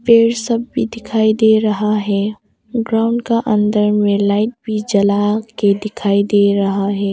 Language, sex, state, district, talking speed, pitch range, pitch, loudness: Hindi, female, Arunachal Pradesh, Longding, 160 wpm, 200-225 Hz, 210 Hz, -16 LUFS